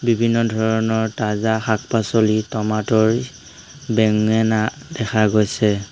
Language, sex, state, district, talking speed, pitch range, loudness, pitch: Assamese, male, Assam, Hailakandi, 90 wpm, 110-115 Hz, -19 LUFS, 110 Hz